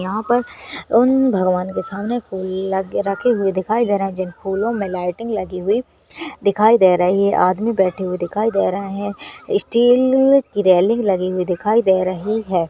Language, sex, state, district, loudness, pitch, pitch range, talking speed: Hindi, female, Uttarakhand, Uttarkashi, -18 LUFS, 200 Hz, 185-230 Hz, 190 wpm